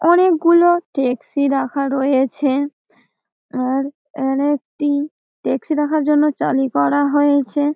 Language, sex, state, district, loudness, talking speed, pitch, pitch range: Bengali, female, West Bengal, Malda, -17 LUFS, 110 wpm, 285 Hz, 265-295 Hz